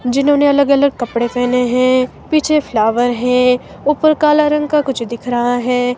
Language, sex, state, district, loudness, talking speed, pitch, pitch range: Hindi, female, Himachal Pradesh, Shimla, -14 LUFS, 160 wpm, 250 Hz, 245-290 Hz